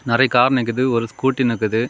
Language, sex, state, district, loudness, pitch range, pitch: Tamil, male, Tamil Nadu, Kanyakumari, -18 LUFS, 115-130 Hz, 120 Hz